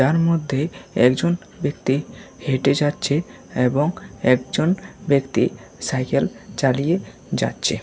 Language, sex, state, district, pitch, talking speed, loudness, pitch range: Bengali, male, Tripura, West Tripura, 145 Hz, 90 wpm, -21 LUFS, 135-165 Hz